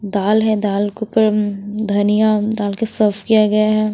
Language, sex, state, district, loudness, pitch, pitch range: Hindi, female, Haryana, Rohtak, -16 LUFS, 210 Hz, 205-215 Hz